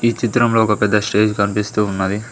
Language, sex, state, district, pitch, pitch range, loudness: Telugu, male, Telangana, Mahabubabad, 105 Hz, 105-115 Hz, -17 LUFS